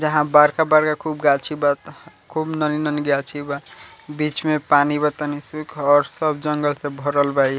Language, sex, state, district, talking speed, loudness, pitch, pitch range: Bhojpuri, male, Bihar, Muzaffarpur, 165 wpm, -20 LUFS, 150 Hz, 145-155 Hz